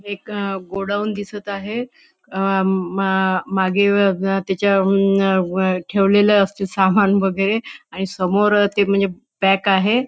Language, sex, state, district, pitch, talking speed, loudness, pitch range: Marathi, female, Maharashtra, Nagpur, 195 Hz, 120 wpm, -18 LUFS, 190-205 Hz